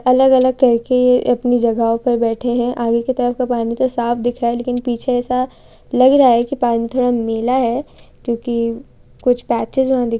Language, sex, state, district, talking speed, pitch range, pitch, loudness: Hindi, female, Bihar, Bhagalpur, 195 wpm, 235-255 Hz, 245 Hz, -16 LUFS